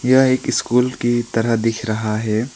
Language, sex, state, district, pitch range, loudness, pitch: Hindi, male, West Bengal, Alipurduar, 110-125 Hz, -18 LUFS, 115 Hz